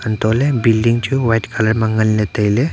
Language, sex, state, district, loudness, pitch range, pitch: Wancho, male, Arunachal Pradesh, Longding, -16 LUFS, 110-120 Hz, 110 Hz